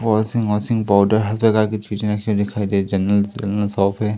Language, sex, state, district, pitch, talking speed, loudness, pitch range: Hindi, male, Madhya Pradesh, Katni, 105 Hz, 55 wpm, -19 LUFS, 100-110 Hz